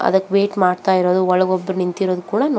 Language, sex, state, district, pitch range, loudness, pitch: Kannada, female, Karnataka, Belgaum, 180-195 Hz, -17 LUFS, 185 Hz